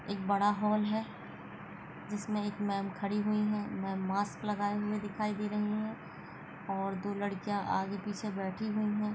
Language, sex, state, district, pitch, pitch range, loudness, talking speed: Hindi, female, Uttar Pradesh, Ghazipur, 205 Hz, 200-210 Hz, -34 LUFS, 170 wpm